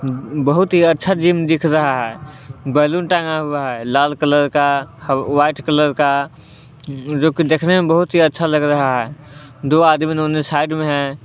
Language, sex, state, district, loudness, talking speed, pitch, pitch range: Hindi, male, Jharkhand, Palamu, -16 LUFS, 175 wpm, 150 Hz, 140-160 Hz